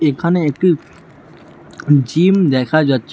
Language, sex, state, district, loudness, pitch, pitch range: Bengali, female, West Bengal, Alipurduar, -15 LUFS, 155 Hz, 140-175 Hz